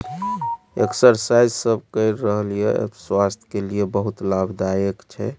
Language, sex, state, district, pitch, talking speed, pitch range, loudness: Maithili, male, Bihar, Supaul, 105 Hz, 110 wpm, 100-120 Hz, -21 LUFS